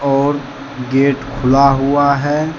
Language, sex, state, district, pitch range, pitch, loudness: Hindi, male, Jharkhand, Deoghar, 135-145 Hz, 140 Hz, -14 LUFS